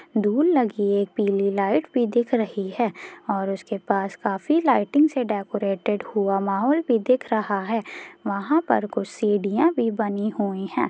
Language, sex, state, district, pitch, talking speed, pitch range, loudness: Hindi, female, Bihar, Purnia, 210 Hz, 165 wpm, 200-245 Hz, -23 LUFS